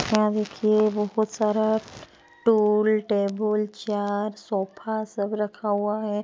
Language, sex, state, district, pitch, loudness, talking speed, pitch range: Hindi, female, Punjab, Pathankot, 210 Hz, -24 LUFS, 115 wpm, 210-215 Hz